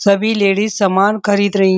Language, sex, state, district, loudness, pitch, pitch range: Hindi, female, Uttar Pradesh, Muzaffarnagar, -14 LUFS, 200 Hz, 195-210 Hz